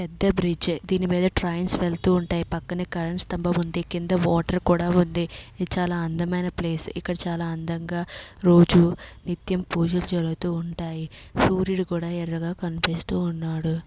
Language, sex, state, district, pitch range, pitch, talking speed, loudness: Telugu, female, Andhra Pradesh, Srikakulam, 170-180 Hz, 175 Hz, 145 wpm, -24 LUFS